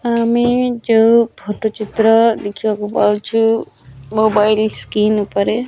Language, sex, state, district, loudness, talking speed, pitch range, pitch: Odia, male, Odisha, Nuapada, -15 LUFS, 95 wpm, 210-230 Hz, 220 Hz